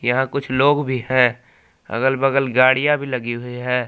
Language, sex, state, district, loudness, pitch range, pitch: Hindi, male, Jharkhand, Palamu, -18 LUFS, 125-135 Hz, 130 Hz